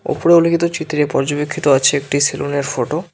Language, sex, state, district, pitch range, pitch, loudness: Bengali, male, West Bengal, Cooch Behar, 140-165 Hz, 150 Hz, -16 LUFS